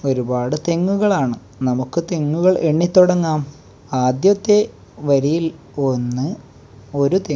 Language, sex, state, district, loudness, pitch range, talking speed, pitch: Malayalam, male, Kerala, Kasaragod, -18 LUFS, 130-170 Hz, 90 wpm, 145 Hz